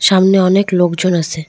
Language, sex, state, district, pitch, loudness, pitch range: Bengali, female, West Bengal, Cooch Behar, 185 Hz, -12 LUFS, 170-190 Hz